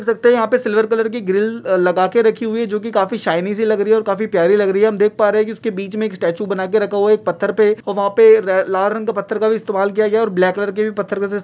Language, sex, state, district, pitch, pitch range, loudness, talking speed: Hindi, male, Jharkhand, Jamtara, 210 Hz, 200-220 Hz, -16 LUFS, 305 wpm